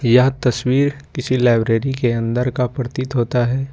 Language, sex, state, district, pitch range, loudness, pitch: Hindi, male, Jharkhand, Ranchi, 120-130 Hz, -18 LUFS, 125 Hz